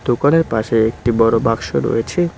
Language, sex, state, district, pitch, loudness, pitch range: Bengali, male, West Bengal, Cooch Behar, 115 Hz, -16 LUFS, 115-135 Hz